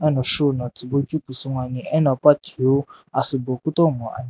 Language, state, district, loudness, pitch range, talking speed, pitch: Sumi, Nagaland, Dimapur, -21 LUFS, 130-150 Hz, 180 wpm, 135 Hz